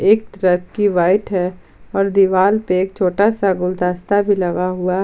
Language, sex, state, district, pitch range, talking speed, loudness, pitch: Hindi, female, Jharkhand, Palamu, 180-200 Hz, 155 wpm, -17 LUFS, 190 Hz